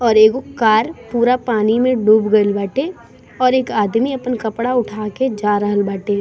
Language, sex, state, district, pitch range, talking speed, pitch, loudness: Bhojpuri, female, Bihar, East Champaran, 210-250 Hz, 185 wpm, 225 Hz, -16 LUFS